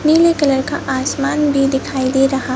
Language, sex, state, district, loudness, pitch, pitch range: Hindi, male, Madhya Pradesh, Bhopal, -16 LUFS, 275 Hz, 265-290 Hz